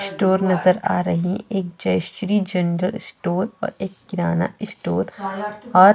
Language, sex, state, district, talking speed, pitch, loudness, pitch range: Hindi, female, Chhattisgarh, Jashpur, 140 wpm, 190 Hz, -22 LUFS, 180-205 Hz